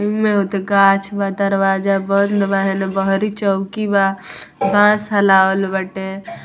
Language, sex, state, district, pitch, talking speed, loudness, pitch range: Bhojpuri, female, Bihar, Muzaffarpur, 195 Hz, 175 wpm, -16 LUFS, 195-200 Hz